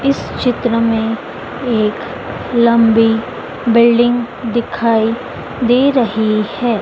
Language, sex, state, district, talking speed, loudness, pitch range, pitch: Hindi, female, Madhya Pradesh, Dhar, 90 wpm, -15 LUFS, 225-245 Hz, 235 Hz